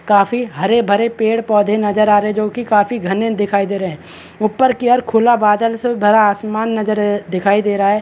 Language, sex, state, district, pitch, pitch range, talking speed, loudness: Hindi, male, Chhattisgarh, Balrampur, 215 Hz, 205-230 Hz, 225 wpm, -15 LUFS